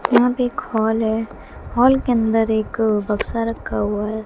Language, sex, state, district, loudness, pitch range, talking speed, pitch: Hindi, female, Haryana, Jhajjar, -19 LUFS, 220-235 Hz, 185 wpm, 225 Hz